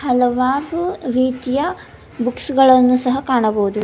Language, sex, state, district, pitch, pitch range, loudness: Kannada, female, Karnataka, Bidar, 255 Hz, 250-270 Hz, -17 LUFS